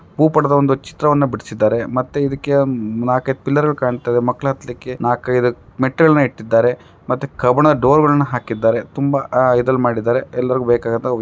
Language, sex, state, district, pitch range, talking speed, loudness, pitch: Kannada, male, Karnataka, Raichur, 120-140 Hz, 150 wpm, -16 LUFS, 125 Hz